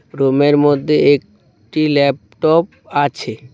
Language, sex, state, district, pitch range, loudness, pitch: Bengali, male, West Bengal, Cooch Behar, 130-150 Hz, -15 LUFS, 145 Hz